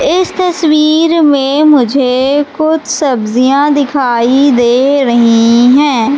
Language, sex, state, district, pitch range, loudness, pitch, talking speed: Hindi, female, Madhya Pradesh, Katni, 250-305 Hz, -9 LUFS, 280 Hz, 95 wpm